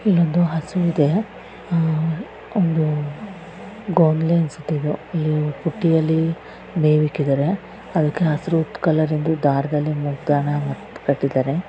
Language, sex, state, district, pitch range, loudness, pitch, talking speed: Kannada, female, Karnataka, Raichur, 150-170 Hz, -20 LUFS, 160 Hz, 75 wpm